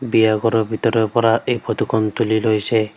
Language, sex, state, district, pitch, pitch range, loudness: Assamese, female, Assam, Sonitpur, 110 Hz, 110-115 Hz, -18 LUFS